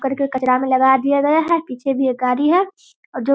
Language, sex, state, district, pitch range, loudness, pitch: Hindi, female, Bihar, Darbhanga, 260-305 Hz, -17 LUFS, 270 Hz